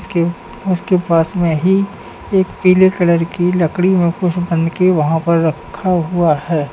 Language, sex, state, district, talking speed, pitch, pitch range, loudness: Hindi, male, Uttar Pradesh, Lalitpur, 150 wpm, 175 Hz, 165-185 Hz, -15 LUFS